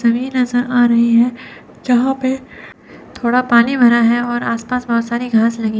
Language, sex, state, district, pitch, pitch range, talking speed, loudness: Hindi, female, Chandigarh, Chandigarh, 240 Hz, 235-250 Hz, 185 wpm, -15 LUFS